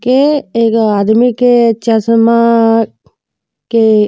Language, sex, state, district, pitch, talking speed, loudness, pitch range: Bhojpuri, female, Uttar Pradesh, Deoria, 230 Hz, 105 wpm, -10 LUFS, 225-240 Hz